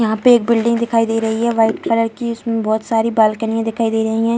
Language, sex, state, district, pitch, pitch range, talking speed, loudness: Hindi, female, Bihar, Muzaffarpur, 225 Hz, 225-230 Hz, 260 wpm, -16 LUFS